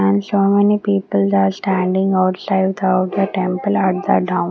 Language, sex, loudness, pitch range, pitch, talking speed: English, female, -17 LUFS, 185-200 Hz, 190 Hz, 175 wpm